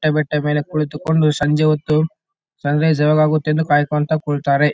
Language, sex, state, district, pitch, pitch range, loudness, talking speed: Kannada, male, Karnataka, Bellary, 150 Hz, 150-155 Hz, -17 LUFS, 165 wpm